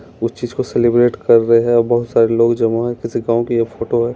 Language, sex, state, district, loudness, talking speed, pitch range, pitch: Hindi, male, Bihar, Muzaffarpur, -15 LUFS, 275 wpm, 115-120 Hz, 115 Hz